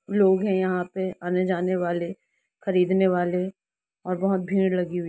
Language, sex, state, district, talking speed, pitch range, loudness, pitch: Hindi, female, Jharkhand, Jamtara, 155 wpm, 180-195 Hz, -24 LUFS, 185 Hz